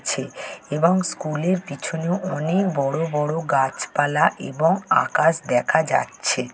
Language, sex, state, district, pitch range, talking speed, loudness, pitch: Bengali, male, West Bengal, Jhargram, 140-175 Hz, 110 wpm, -21 LUFS, 155 Hz